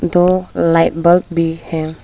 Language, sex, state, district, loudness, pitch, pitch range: Hindi, female, Arunachal Pradesh, Papum Pare, -14 LUFS, 165 Hz, 165-175 Hz